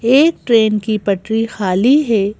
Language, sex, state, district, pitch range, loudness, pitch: Hindi, female, Madhya Pradesh, Bhopal, 205-240 Hz, -14 LUFS, 220 Hz